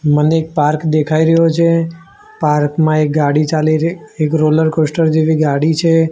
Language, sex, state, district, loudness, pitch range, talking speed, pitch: Gujarati, male, Gujarat, Gandhinagar, -14 LUFS, 155-165 Hz, 175 wpm, 160 Hz